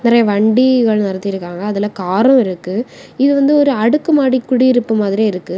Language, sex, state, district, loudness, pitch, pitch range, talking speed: Tamil, female, Tamil Nadu, Kanyakumari, -14 LUFS, 225 Hz, 200-260 Hz, 140 wpm